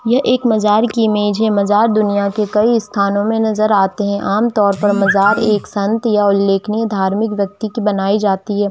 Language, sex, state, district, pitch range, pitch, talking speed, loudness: Hindi, female, Jharkhand, Jamtara, 200-220 Hz, 210 Hz, 200 wpm, -15 LUFS